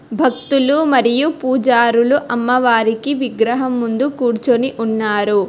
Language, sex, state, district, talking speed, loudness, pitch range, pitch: Telugu, female, Telangana, Hyderabad, 85 wpm, -15 LUFS, 230-265 Hz, 245 Hz